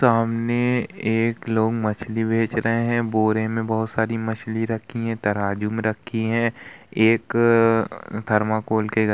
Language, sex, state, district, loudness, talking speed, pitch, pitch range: Hindi, male, Uttar Pradesh, Budaun, -22 LUFS, 145 wpm, 110 Hz, 110-115 Hz